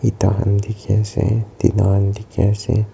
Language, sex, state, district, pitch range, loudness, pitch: Nagamese, male, Nagaland, Kohima, 100-110 Hz, -18 LUFS, 105 Hz